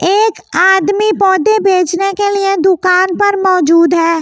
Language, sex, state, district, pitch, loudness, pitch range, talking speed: Hindi, female, Delhi, New Delhi, 380 Hz, -11 LUFS, 365-400 Hz, 155 wpm